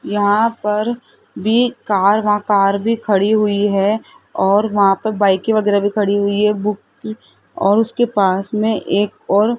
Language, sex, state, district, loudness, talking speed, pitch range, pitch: Hindi, female, Rajasthan, Jaipur, -16 LUFS, 160 wpm, 200-220 Hz, 210 Hz